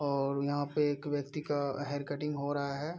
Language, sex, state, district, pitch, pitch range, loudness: Hindi, male, Bihar, Araria, 145 Hz, 140-145 Hz, -34 LUFS